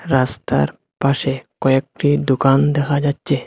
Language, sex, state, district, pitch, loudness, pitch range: Bengali, male, Assam, Hailakandi, 135 Hz, -18 LUFS, 135-145 Hz